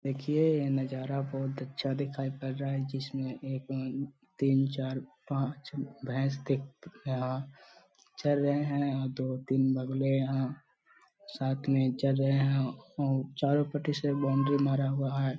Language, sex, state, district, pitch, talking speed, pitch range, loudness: Hindi, male, Bihar, Gaya, 135 Hz, 110 wpm, 135-140 Hz, -31 LUFS